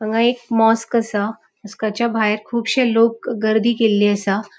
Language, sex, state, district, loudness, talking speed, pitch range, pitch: Konkani, female, Goa, North and South Goa, -18 LUFS, 145 wpm, 210-235 Hz, 225 Hz